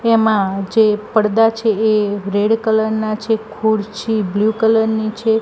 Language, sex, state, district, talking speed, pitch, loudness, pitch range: Gujarati, female, Gujarat, Gandhinagar, 155 wpm, 220 Hz, -16 LUFS, 210-225 Hz